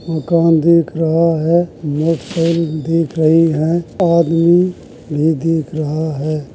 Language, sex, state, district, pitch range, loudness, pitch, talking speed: Hindi, male, Uttar Pradesh, Jalaun, 155-170 Hz, -15 LUFS, 165 Hz, 120 wpm